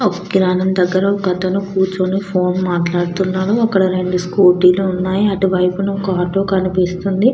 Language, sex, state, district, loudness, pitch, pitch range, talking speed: Telugu, female, Andhra Pradesh, Krishna, -16 LUFS, 185 Hz, 180-195 Hz, 125 wpm